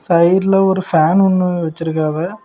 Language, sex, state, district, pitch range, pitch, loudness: Tamil, male, Tamil Nadu, Kanyakumari, 165-190 Hz, 175 Hz, -14 LUFS